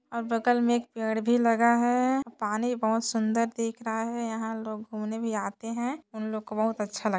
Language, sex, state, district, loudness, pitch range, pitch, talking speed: Chhattisgarhi, female, Chhattisgarh, Sarguja, -28 LUFS, 220-235 Hz, 225 Hz, 215 wpm